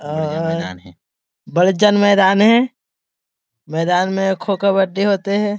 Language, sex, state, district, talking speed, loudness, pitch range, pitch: Chhattisgarhi, male, Chhattisgarh, Rajnandgaon, 130 wpm, -16 LUFS, 165-200 Hz, 190 Hz